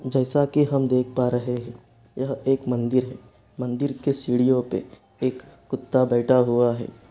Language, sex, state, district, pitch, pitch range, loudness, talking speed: Hindi, male, Jharkhand, Sahebganj, 125 Hz, 120-135 Hz, -23 LUFS, 170 wpm